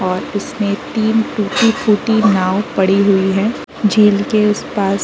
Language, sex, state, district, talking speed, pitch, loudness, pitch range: Hindi, female, Uttar Pradesh, Varanasi, 155 wpm, 205 Hz, -15 LUFS, 195-220 Hz